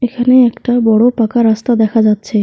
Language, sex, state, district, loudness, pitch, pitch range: Bengali, female, West Bengal, Alipurduar, -11 LUFS, 230 Hz, 220-245 Hz